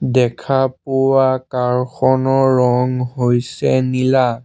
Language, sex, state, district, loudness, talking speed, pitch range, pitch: Assamese, male, Assam, Sonitpur, -16 LUFS, 95 wpm, 125-130 Hz, 130 Hz